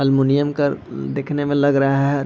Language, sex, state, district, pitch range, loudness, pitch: Hindi, male, Bihar, East Champaran, 135-145 Hz, -19 LUFS, 140 Hz